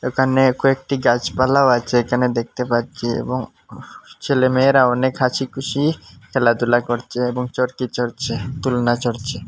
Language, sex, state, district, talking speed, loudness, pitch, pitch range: Bengali, male, Assam, Hailakandi, 120 wpm, -19 LUFS, 125 Hz, 120-130 Hz